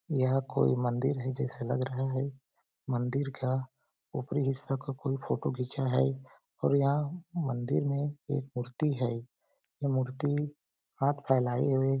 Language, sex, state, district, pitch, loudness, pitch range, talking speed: Hindi, male, Chhattisgarh, Balrampur, 135 Hz, -32 LUFS, 130-140 Hz, 150 wpm